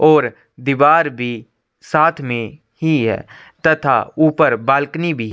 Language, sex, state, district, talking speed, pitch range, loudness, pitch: Hindi, male, Chhattisgarh, Korba, 125 wpm, 120-155 Hz, -16 LUFS, 145 Hz